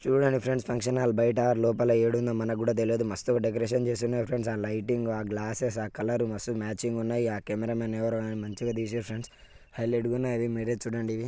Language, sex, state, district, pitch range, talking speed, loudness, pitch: Telugu, male, Telangana, Nalgonda, 110-120 Hz, 195 wpm, -29 LUFS, 115 Hz